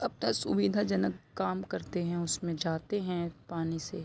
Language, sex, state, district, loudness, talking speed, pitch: Hindi, female, Jharkhand, Sahebganj, -33 LUFS, 175 wpm, 165 Hz